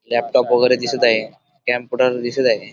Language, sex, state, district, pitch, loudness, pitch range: Marathi, male, Maharashtra, Dhule, 120 Hz, -18 LUFS, 120-125 Hz